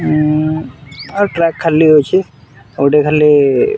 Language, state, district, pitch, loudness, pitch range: Sambalpuri, Odisha, Sambalpur, 150 Hz, -12 LUFS, 140-165 Hz